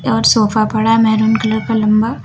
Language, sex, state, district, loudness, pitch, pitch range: Hindi, female, Uttar Pradesh, Lucknow, -13 LUFS, 220 Hz, 215-225 Hz